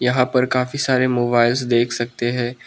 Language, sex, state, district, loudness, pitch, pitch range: Hindi, male, Manipur, Imphal West, -19 LUFS, 125 Hz, 120-125 Hz